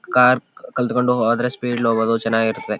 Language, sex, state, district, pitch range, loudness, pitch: Kannada, male, Karnataka, Chamarajanagar, 115-125 Hz, -19 LUFS, 120 Hz